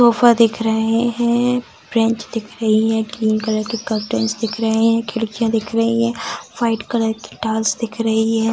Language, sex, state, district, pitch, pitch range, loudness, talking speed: Hindi, female, Bihar, Samastipur, 225 Hz, 220-230 Hz, -18 LUFS, 185 wpm